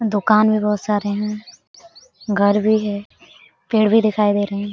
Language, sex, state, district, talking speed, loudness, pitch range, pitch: Hindi, female, Jharkhand, Sahebganj, 175 wpm, -18 LUFS, 205-220 Hz, 210 Hz